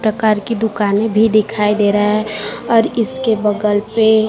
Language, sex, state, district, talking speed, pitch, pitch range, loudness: Hindi, female, Chhattisgarh, Raipur, 170 wpm, 215 Hz, 210-225 Hz, -15 LUFS